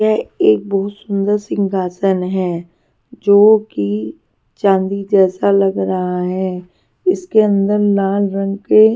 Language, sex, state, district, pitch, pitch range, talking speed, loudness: Hindi, female, Punjab, Pathankot, 195 Hz, 180-205 Hz, 120 wpm, -15 LUFS